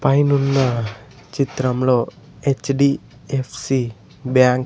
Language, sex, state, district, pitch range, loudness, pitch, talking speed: Telugu, male, Andhra Pradesh, Sri Satya Sai, 125-140 Hz, -20 LUFS, 130 Hz, 65 wpm